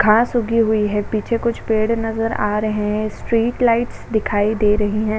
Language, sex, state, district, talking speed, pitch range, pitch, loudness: Hindi, female, Uttar Pradesh, Jalaun, 195 wpm, 210-230 Hz, 215 Hz, -19 LUFS